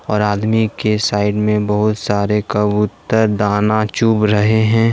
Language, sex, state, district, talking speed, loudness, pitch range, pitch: Hindi, male, Jharkhand, Deoghar, 145 wpm, -16 LUFS, 105-110 Hz, 105 Hz